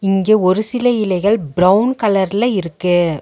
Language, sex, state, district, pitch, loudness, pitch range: Tamil, female, Tamil Nadu, Nilgiris, 195 Hz, -15 LUFS, 185-215 Hz